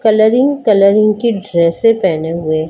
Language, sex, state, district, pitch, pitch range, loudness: Hindi, female, Maharashtra, Mumbai Suburban, 210 Hz, 170-225 Hz, -12 LUFS